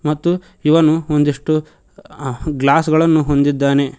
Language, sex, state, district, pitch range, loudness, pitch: Kannada, male, Karnataka, Koppal, 140-155 Hz, -15 LUFS, 150 Hz